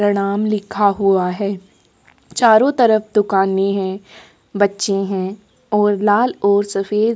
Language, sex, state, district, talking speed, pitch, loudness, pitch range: Hindi, female, Maharashtra, Aurangabad, 125 wpm, 205 Hz, -17 LUFS, 195-210 Hz